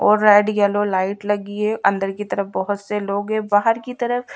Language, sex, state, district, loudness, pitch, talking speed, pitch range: Hindi, female, Odisha, Malkangiri, -19 LUFS, 205 Hz, 235 wpm, 200-215 Hz